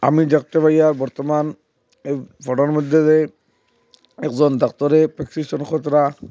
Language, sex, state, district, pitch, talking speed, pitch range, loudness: Bengali, male, Assam, Hailakandi, 150 Hz, 105 wpm, 140-155 Hz, -18 LUFS